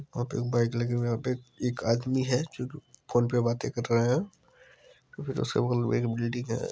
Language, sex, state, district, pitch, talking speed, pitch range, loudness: Hindi, male, Bihar, Supaul, 120 Hz, 150 wpm, 120-130 Hz, -29 LUFS